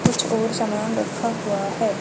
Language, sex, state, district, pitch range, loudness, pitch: Hindi, female, Haryana, Charkhi Dadri, 205-225 Hz, -23 LUFS, 220 Hz